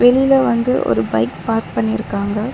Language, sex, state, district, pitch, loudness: Tamil, female, Tamil Nadu, Chennai, 210 Hz, -17 LUFS